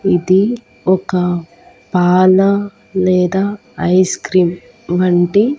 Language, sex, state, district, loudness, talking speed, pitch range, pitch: Telugu, female, Andhra Pradesh, Annamaya, -14 LUFS, 75 wpm, 180-195 Hz, 185 Hz